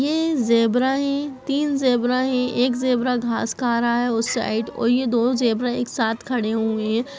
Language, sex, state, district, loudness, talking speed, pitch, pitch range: Hindi, female, Bihar, East Champaran, -21 LUFS, 190 wpm, 245 Hz, 235-260 Hz